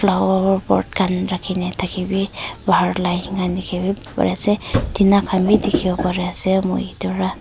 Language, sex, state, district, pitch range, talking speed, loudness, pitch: Nagamese, female, Nagaland, Kohima, 180-195 Hz, 130 wpm, -19 LUFS, 185 Hz